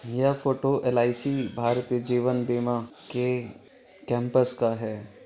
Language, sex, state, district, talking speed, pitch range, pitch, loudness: Maithili, male, Bihar, Supaul, 125 wpm, 120-125 Hz, 125 Hz, -26 LUFS